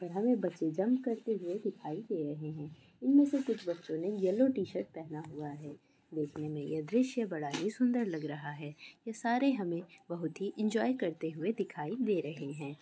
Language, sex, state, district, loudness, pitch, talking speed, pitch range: Hindi, female, Chhattisgarh, Korba, -35 LUFS, 180 Hz, 190 wpm, 155-225 Hz